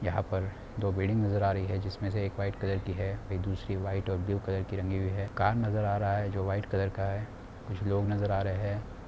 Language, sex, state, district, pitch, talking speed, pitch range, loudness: Hindi, male, Bihar, Samastipur, 100 Hz, 265 wpm, 95-100 Hz, -32 LUFS